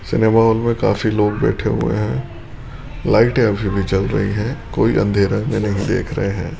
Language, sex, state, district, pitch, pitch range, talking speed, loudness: Hindi, male, Rajasthan, Jaipur, 110 Hz, 100-120 Hz, 200 wpm, -18 LUFS